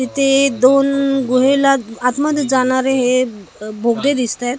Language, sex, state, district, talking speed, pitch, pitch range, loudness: Marathi, female, Maharashtra, Mumbai Suburban, 130 wpm, 260 Hz, 245-275 Hz, -15 LUFS